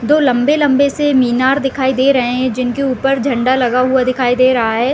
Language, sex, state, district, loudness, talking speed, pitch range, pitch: Hindi, female, Bihar, Gopalganj, -13 LUFS, 220 wpm, 250-275 Hz, 260 Hz